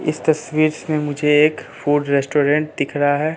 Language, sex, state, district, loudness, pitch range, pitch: Hindi, male, Bihar, Katihar, -18 LUFS, 145-155 Hz, 150 Hz